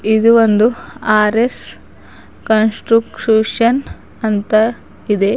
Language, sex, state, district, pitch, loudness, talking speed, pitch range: Kannada, female, Karnataka, Bidar, 220 Hz, -14 LUFS, 80 wpm, 215-230 Hz